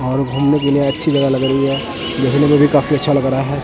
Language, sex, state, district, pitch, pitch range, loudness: Hindi, male, Punjab, Kapurthala, 140 Hz, 135-145 Hz, -15 LUFS